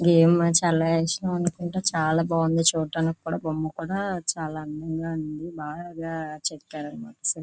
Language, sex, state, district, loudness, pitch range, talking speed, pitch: Telugu, female, Andhra Pradesh, Visakhapatnam, -25 LUFS, 155-170 Hz, 130 wpm, 165 Hz